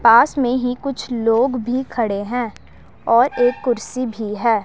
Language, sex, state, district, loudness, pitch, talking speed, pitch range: Hindi, female, Punjab, Pathankot, -19 LUFS, 245 Hz, 170 wpm, 230-255 Hz